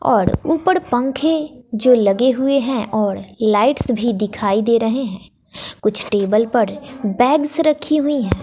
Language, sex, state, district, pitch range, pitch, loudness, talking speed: Hindi, female, Bihar, West Champaran, 215-285 Hz, 245 Hz, -17 LUFS, 150 wpm